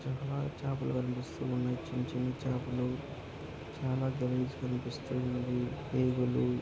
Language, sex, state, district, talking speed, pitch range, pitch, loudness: Telugu, male, Andhra Pradesh, Anantapur, 90 wpm, 125-135 Hz, 125 Hz, -35 LUFS